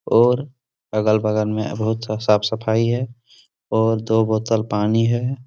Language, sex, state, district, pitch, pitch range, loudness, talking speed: Hindi, male, Uttar Pradesh, Etah, 110 Hz, 110-120 Hz, -20 LUFS, 120 wpm